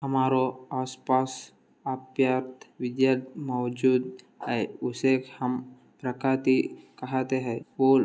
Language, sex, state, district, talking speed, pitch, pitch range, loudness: Hindi, male, Maharashtra, Dhule, 75 wpm, 130 Hz, 125-130 Hz, -28 LUFS